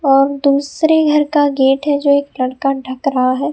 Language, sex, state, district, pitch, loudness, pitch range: Hindi, female, Rajasthan, Bikaner, 280 Hz, -14 LUFS, 265-290 Hz